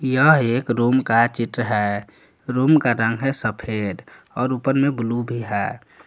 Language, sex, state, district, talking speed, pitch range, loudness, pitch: Hindi, male, Jharkhand, Palamu, 170 wpm, 115-130 Hz, -20 LUFS, 120 Hz